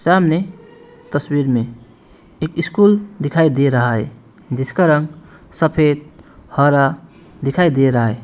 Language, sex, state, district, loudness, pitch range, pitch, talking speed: Hindi, male, West Bengal, Alipurduar, -16 LUFS, 130-165 Hz, 145 Hz, 125 wpm